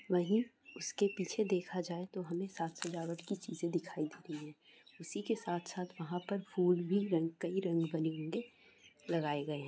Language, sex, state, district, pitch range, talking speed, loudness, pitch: Hindi, female, Jharkhand, Jamtara, 165-195 Hz, 185 wpm, -38 LUFS, 175 Hz